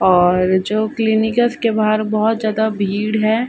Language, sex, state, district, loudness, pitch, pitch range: Hindi, female, Uttar Pradesh, Ghazipur, -16 LUFS, 215 Hz, 205-220 Hz